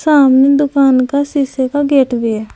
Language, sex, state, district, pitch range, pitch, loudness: Hindi, female, Uttar Pradesh, Saharanpur, 260-285 Hz, 275 Hz, -12 LUFS